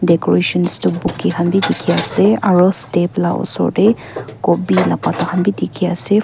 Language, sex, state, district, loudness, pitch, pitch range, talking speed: Nagamese, female, Nagaland, Kohima, -15 LUFS, 180 Hz, 175-195 Hz, 180 wpm